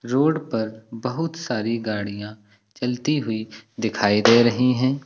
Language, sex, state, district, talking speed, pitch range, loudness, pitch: Hindi, male, Uttar Pradesh, Lucknow, 130 wpm, 110-130 Hz, -22 LUFS, 115 Hz